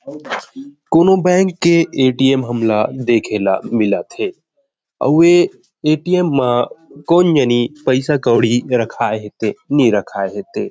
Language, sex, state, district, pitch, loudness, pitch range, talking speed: Chhattisgarhi, male, Chhattisgarh, Rajnandgaon, 135 Hz, -15 LUFS, 120-185 Hz, 135 wpm